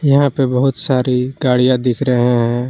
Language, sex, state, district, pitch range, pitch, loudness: Hindi, male, Jharkhand, Palamu, 125-135 Hz, 125 Hz, -15 LUFS